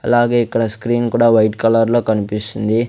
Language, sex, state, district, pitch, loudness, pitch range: Telugu, male, Andhra Pradesh, Sri Satya Sai, 115 Hz, -15 LUFS, 110-120 Hz